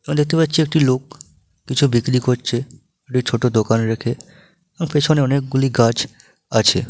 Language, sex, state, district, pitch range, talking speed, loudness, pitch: Bengali, male, West Bengal, Malda, 120-155 Hz, 120 wpm, -18 LUFS, 135 Hz